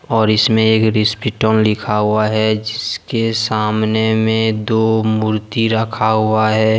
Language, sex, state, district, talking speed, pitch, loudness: Hindi, male, Jharkhand, Deoghar, 130 wpm, 110 Hz, -15 LUFS